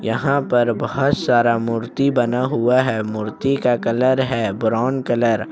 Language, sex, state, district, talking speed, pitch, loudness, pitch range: Hindi, male, Jharkhand, Ranchi, 165 wpm, 120 Hz, -19 LUFS, 115-130 Hz